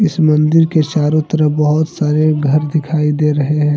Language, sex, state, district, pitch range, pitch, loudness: Hindi, male, Jharkhand, Deoghar, 150-155 Hz, 150 Hz, -14 LUFS